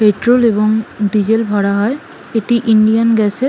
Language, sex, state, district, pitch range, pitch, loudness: Bengali, female, West Bengal, Malda, 210-235 Hz, 220 Hz, -13 LUFS